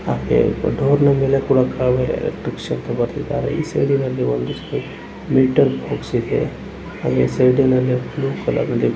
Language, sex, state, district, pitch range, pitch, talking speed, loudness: Kannada, male, Karnataka, Raichur, 95-135 Hz, 125 Hz, 140 wpm, -19 LUFS